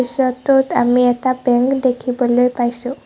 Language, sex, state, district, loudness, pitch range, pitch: Assamese, female, Assam, Sonitpur, -16 LUFS, 245-255 Hz, 250 Hz